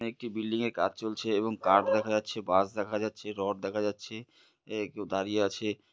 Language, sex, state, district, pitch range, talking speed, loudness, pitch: Bengali, male, West Bengal, Purulia, 105-110 Hz, 190 wpm, -31 LUFS, 105 Hz